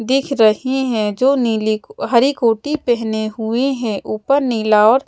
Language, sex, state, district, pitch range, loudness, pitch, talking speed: Hindi, female, Madhya Pradesh, Bhopal, 220-265 Hz, -17 LUFS, 230 Hz, 155 wpm